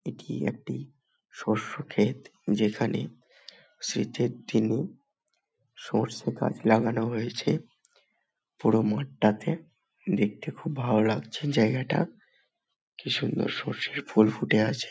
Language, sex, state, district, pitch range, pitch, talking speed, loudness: Bengali, male, West Bengal, Malda, 110-130 Hz, 110 Hz, 100 wpm, -28 LUFS